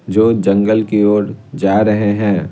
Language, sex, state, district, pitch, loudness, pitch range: Hindi, male, Bihar, Patna, 105 Hz, -14 LUFS, 100-110 Hz